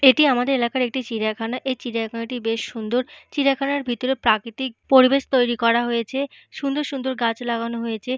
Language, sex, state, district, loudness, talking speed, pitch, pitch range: Bengali, female, Jharkhand, Jamtara, -22 LUFS, 155 wpm, 250 Hz, 230-265 Hz